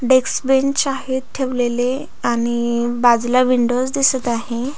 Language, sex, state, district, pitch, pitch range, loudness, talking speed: Marathi, female, Maharashtra, Aurangabad, 255 Hz, 240-265 Hz, -18 LUFS, 115 wpm